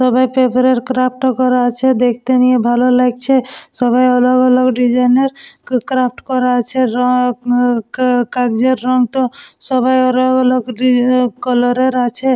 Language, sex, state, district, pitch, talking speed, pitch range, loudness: Bengali, female, West Bengal, Dakshin Dinajpur, 255 Hz, 145 wpm, 245-255 Hz, -14 LUFS